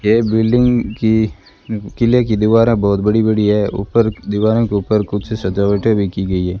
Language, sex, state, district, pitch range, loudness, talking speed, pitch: Hindi, female, Rajasthan, Bikaner, 100-110 Hz, -15 LUFS, 180 wpm, 110 Hz